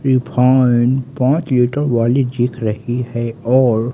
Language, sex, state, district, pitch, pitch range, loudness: Hindi, male, Haryana, Rohtak, 125 Hz, 120-130 Hz, -16 LUFS